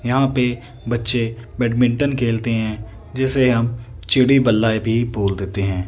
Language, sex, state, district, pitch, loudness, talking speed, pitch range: Hindi, male, Punjab, Fazilka, 115 Hz, -18 LUFS, 145 wpm, 110-125 Hz